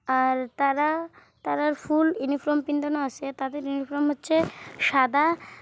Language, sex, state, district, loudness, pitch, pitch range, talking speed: Bengali, female, West Bengal, Kolkata, -25 LUFS, 290 Hz, 275-300 Hz, 95 wpm